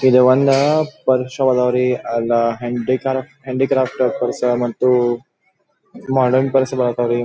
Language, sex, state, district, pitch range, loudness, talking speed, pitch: Kannada, male, Karnataka, Belgaum, 120-130 Hz, -17 LUFS, 130 wpm, 125 Hz